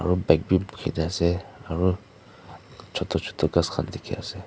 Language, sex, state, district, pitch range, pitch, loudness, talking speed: Nagamese, female, Nagaland, Dimapur, 85-110 Hz, 90 Hz, -26 LUFS, 160 wpm